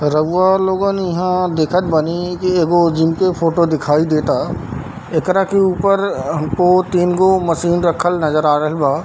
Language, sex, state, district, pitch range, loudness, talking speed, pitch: Hindi, male, Bihar, Darbhanga, 155-185 Hz, -15 LUFS, 160 wpm, 175 Hz